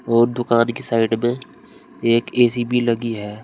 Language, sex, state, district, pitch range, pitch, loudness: Hindi, male, Uttar Pradesh, Saharanpur, 115-120 Hz, 115 Hz, -19 LUFS